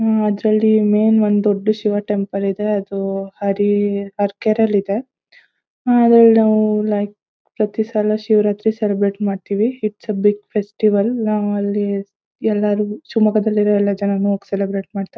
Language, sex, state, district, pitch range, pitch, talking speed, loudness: Kannada, female, Karnataka, Shimoga, 200-215 Hz, 210 Hz, 140 wpm, -17 LUFS